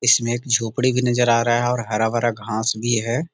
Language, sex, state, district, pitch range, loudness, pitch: Magahi, male, Bihar, Jahanabad, 115-125 Hz, -20 LUFS, 120 Hz